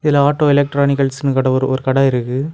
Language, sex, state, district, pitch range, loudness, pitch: Tamil, male, Tamil Nadu, Kanyakumari, 130-145 Hz, -15 LUFS, 135 Hz